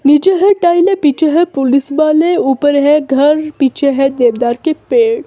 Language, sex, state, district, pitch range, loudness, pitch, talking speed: Hindi, female, Himachal Pradesh, Shimla, 275-345 Hz, -11 LUFS, 300 Hz, 170 wpm